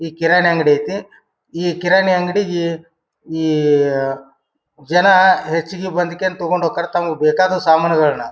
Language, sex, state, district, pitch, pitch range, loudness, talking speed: Kannada, male, Karnataka, Bijapur, 170 Hz, 155-180 Hz, -16 LUFS, 125 wpm